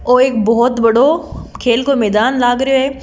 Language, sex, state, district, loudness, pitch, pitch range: Marwari, female, Rajasthan, Nagaur, -13 LUFS, 250 Hz, 235-265 Hz